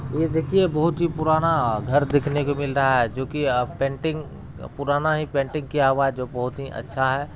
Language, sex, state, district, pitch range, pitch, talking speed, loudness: Hindi, male, Bihar, Araria, 135-155 Hz, 145 Hz, 210 wpm, -23 LUFS